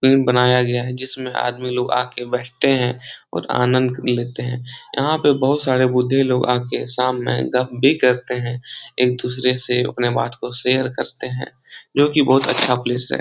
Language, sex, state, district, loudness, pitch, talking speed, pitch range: Hindi, male, Bihar, Jahanabad, -19 LUFS, 125 Hz, 180 wpm, 125-130 Hz